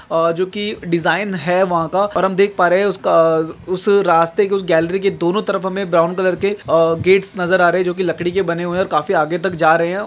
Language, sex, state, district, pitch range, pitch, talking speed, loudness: Hindi, male, Maharashtra, Nagpur, 170-195 Hz, 180 Hz, 285 wpm, -16 LUFS